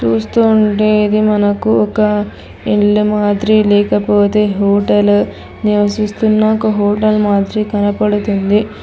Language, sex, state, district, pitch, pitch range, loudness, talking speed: Telugu, female, Telangana, Hyderabad, 210 Hz, 205-215 Hz, -13 LUFS, 95 wpm